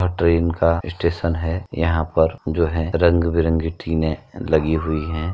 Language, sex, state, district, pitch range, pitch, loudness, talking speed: Hindi, male, Uttar Pradesh, Jyotiba Phule Nagar, 80-85 Hz, 80 Hz, -20 LUFS, 170 wpm